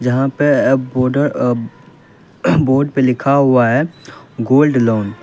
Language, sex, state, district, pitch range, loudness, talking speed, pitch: Hindi, male, Uttar Pradesh, Lalitpur, 125-145 Hz, -14 LUFS, 150 wpm, 135 Hz